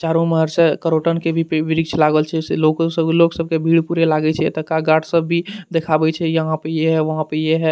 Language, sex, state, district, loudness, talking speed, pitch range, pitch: Maithili, male, Bihar, Madhepura, -17 LUFS, 270 wpm, 155-165 Hz, 160 Hz